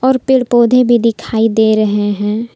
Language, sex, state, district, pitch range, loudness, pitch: Hindi, female, Jharkhand, Palamu, 215-245 Hz, -12 LUFS, 230 Hz